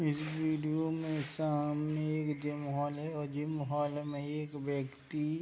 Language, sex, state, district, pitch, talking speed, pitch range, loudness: Hindi, male, Uttar Pradesh, Jalaun, 150 Hz, 135 wpm, 145-155 Hz, -36 LUFS